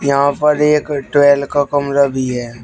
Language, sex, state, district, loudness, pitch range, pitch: Hindi, male, Uttar Pradesh, Shamli, -14 LUFS, 140-145 Hz, 140 Hz